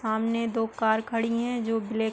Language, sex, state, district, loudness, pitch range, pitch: Hindi, female, Uttar Pradesh, Hamirpur, -27 LUFS, 220-230 Hz, 225 Hz